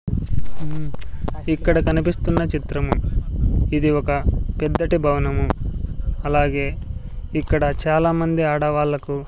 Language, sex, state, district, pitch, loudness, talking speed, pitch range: Telugu, male, Andhra Pradesh, Sri Satya Sai, 145 Hz, -21 LUFS, 80 wpm, 110-155 Hz